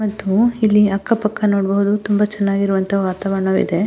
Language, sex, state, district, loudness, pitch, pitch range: Kannada, female, Karnataka, Mysore, -17 LUFS, 200 Hz, 195-210 Hz